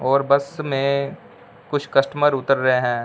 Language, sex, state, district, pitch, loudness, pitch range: Hindi, male, Punjab, Fazilka, 140 Hz, -20 LUFS, 135-140 Hz